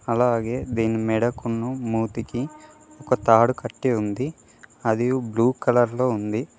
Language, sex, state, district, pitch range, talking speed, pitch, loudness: Telugu, male, Telangana, Mahabubabad, 115-125 Hz, 120 wpm, 120 Hz, -23 LUFS